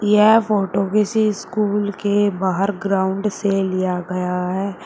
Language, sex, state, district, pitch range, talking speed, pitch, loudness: Hindi, female, Uttar Pradesh, Shamli, 190-210 Hz, 135 wpm, 200 Hz, -19 LUFS